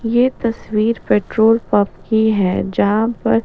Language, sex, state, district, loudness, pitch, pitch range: Hindi, female, Bihar, Patna, -16 LUFS, 225 Hz, 205-230 Hz